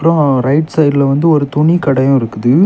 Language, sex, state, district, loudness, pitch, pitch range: Tamil, male, Tamil Nadu, Kanyakumari, -12 LUFS, 145 Hz, 135-155 Hz